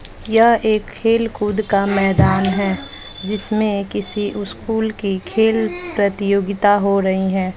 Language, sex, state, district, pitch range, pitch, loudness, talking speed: Hindi, female, Bihar, West Champaran, 195-220 Hz, 200 Hz, -18 LUFS, 125 wpm